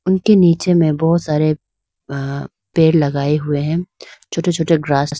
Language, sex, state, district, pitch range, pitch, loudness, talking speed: Hindi, female, Arunachal Pradesh, Lower Dibang Valley, 140-170 Hz, 155 Hz, -16 LUFS, 160 wpm